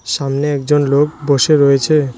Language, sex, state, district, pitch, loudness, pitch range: Bengali, male, West Bengal, Cooch Behar, 140 Hz, -14 LUFS, 140-150 Hz